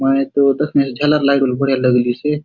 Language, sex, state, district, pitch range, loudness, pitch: Halbi, male, Chhattisgarh, Bastar, 135-145 Hz, -15 LUFS, 135 Hz